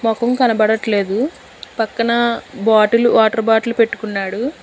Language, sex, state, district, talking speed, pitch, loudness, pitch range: Telugu, female, Telangana, Hyderabad, 90 wpm, 225 Hz, -16 LUFS, 220-235 Hz